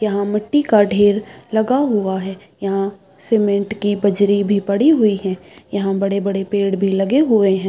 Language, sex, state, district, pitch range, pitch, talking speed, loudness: Hindi, female, Bihar, Saharsa, 195-210 Hz, 200 Hz, 180 wpm, -17 LUFS